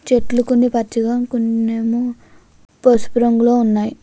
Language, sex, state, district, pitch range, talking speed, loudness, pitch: Telugu, female, Andhra Pradesh, Krishna, 230-245 Hz, 105 wpm, -16 LUFS, 235 Hz